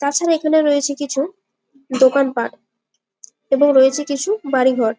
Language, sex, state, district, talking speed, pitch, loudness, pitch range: Bengali, female, West Bengal, Malda, 145 wpm, 280 Hz, -17 LUFS, 265-295 Hz